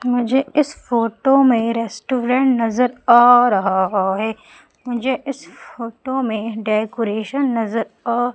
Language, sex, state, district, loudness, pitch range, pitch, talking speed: Hindi, female, Madhya Pradesh, Umaria, -18 LUFS, 225-260 Hz, 240 Hz, 115 wpm